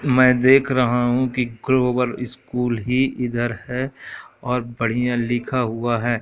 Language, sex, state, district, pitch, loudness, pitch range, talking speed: Hindi, male, Madhya Pradesh, Katni, 125 Hz, -20 LUFS, 120-130 Hz, 145 wpm